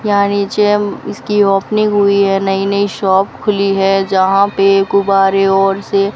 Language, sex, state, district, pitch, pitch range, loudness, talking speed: Hindi, female, Rajasthan, Bikaner, 195 Hz, 195-205 Hz, -13 LUFS, 175 wpm